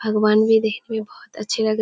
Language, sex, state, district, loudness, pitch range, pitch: Hindi, female, Bihar, Kishanganj, -20 LUFS, 215-220 Hz, 220 Hz